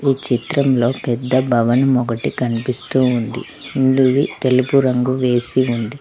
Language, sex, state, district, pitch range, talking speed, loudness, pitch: Telugu, female, Telangana, Mahabubabad, 120-135 Hz, 120 wpm, -17 LUFS, 130 Hz